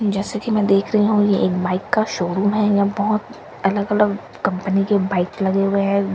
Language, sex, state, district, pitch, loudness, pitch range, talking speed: Hindi, female, Bihar, Katihar, 200 Hz, -19 LUFS, 195-210 Hz, 215 wpm